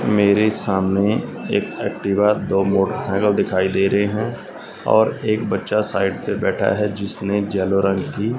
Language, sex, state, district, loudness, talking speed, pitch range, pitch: Hindi, male, Punjab, Fazilka, -19 LUFS, 155 wpm, 95-105 Hz, 100 Hz